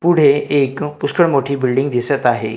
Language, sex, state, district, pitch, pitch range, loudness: Marathi, male, Maharashtra, Gondia, 140 Hz, 130-145 Hz, -15 LUFS